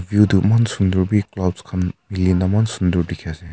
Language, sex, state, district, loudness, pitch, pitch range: Nagamese, male, Nagaland, Kohima, -19 LUFS, 95 Hz, 90-105 Hz